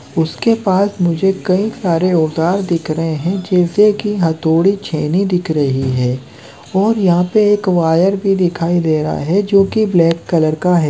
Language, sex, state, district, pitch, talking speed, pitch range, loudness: Hindi, male, Chhattisgarh, Rajnandgaon, 175 Hz, 175 wpm, 160-195 Hz, -15 LUFS